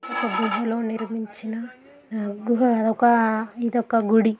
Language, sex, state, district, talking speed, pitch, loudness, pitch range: Telugu, female, Andhra Pradesh, Guntur, 110 wpm, 225 Hz, -23 LUFS, 220-235 Hz